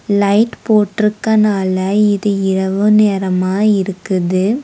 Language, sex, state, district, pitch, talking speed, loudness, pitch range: Tamil, female, Tamil Nadu, Nilgiris, 200 Hz, 75 wpm, -14 LUFS, 190-210 Hz